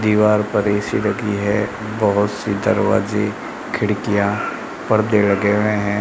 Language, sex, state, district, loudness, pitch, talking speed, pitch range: Hindi, male, Rajasthan, Bikaner, -18 LUFS, 105 Hz, 130 wpm, 100-105 Hz